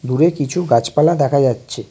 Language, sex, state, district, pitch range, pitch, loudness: Bengali, male, West Bengal, Alipurduar, 125-155 Hz, 140 Hz, -16 LUFS